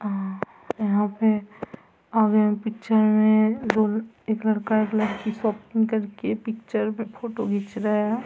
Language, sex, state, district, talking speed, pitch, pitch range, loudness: Hindi, female, Bihar, Samastipur, 140 wpm, 215 Hz, 210-220 Hz, -24 LUFS